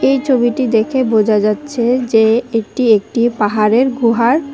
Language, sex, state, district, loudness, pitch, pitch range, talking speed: Bengali, male, Tripura, West Tripura, -14 LUFS, 235 Hz, 220-255 Hz, 130 wpm